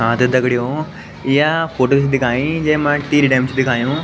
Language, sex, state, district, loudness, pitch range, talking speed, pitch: Garhwali, male, Uttarakhand, Tehri Garhwal, -16 LUFS, 130-150 Hz, 180 wpm, 135 Hz